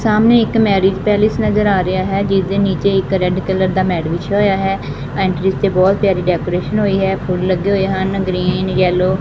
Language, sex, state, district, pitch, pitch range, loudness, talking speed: Punjabi, female, Punjab, Fazilka, 190 Hz, 185-200 Hz, -15 LUFS, 215 wpm